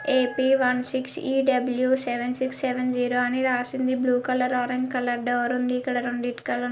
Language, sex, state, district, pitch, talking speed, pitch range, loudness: Telugu, female, Andhra Pradesh, Guntur, 250 Hz, 135 wpm, 245-260 Hz, -24 LUFS